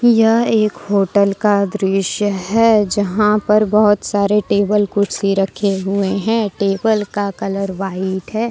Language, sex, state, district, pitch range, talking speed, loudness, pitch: Hindi, female, Jharkhand, Deoghar, 195-210 Hz, 140 wpm, -16 LUFS, 205 Hz